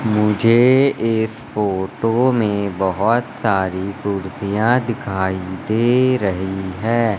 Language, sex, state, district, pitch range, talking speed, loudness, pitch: Hindi, male, Madhya Pradesh, Katni, 95-115 Hz, 90 wpm, -18 LUFS, 105 Hz